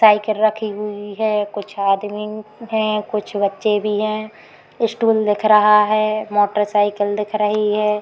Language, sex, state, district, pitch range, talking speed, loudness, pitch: Hindi, female, Uttar Pradesh, Muzaffarnagar, 210-215 Hz, 140 wpm, -18 LUFS, 210 Hz